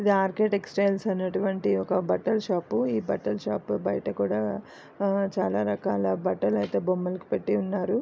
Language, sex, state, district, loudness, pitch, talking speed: Telugu, female, Andhra Pradesh, Visakhapatnam, -27 LUFS, 180 Hz, 140 wpm